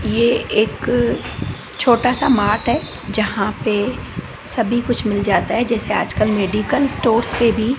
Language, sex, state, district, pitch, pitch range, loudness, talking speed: Hindi, female, Gujarat, Gandhinagar, 230 Hz, 215-245 Hz, -18 LUFS, 145 wpm